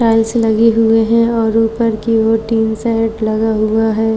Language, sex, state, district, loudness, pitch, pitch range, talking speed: Hindi, female, Maharashtra, Chandrapur, -13 LUFS, 225 Hz, 220-225 Hz, 185 wpm